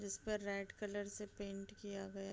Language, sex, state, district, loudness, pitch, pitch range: Hindi, female, Bihar, Sitamarhi, -46 LUFS, 200 Hz, 195-210 Hz